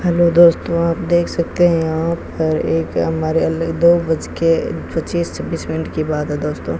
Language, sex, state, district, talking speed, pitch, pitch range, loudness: Hindi, male, Rajasthan, Bikaner, 175 wpm, 165 Hz, 155-170 Hz, -17 LUFS